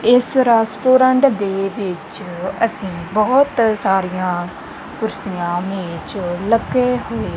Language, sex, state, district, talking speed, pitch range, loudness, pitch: Punjabi, female, Punjab, Kapurthala, 90 wpm, 185-240 Hz, -17 LUFS, 205 Hz